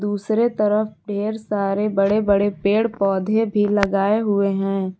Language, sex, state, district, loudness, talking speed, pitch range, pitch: Hindi, female, Jharkhand, Garhwa, -20 LUFS, 130 wpm, 195-215 Hz, 205 Hz